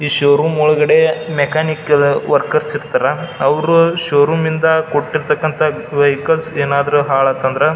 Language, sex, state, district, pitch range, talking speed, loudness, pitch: Kannada, male, Karnataka, Belgaum, 145-160 Hz, 110 wpm, -14 LUFS, 150 Hz